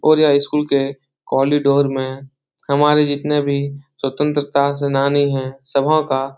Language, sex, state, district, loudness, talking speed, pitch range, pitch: Hindi, male, Bihar, Jahanabad, -17 LUFS, 140 wpm, 135-145 Hz, 140 Hz